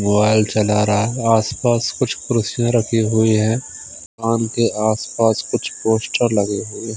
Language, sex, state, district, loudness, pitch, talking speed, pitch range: Hindi, male, Odisha, Khordha, -18 LUFS, 110 Hz, 145 wpm, 105-115 Hz